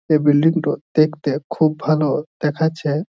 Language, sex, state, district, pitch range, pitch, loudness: Bengali, male, West Bengal, Jhargram, 150-160 Hz, 155 Hz, -19 LUFS